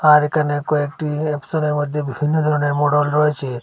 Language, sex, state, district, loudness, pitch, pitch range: Bengali, male, Assam, Hailakandi, -19 LUFS, 150 Hz, 145-150 Hz